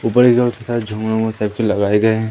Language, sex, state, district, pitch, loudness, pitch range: Hindi, male, Madhya Pradesh, Umaria, 110 Hz, -16 LUFS, 110-120 Hz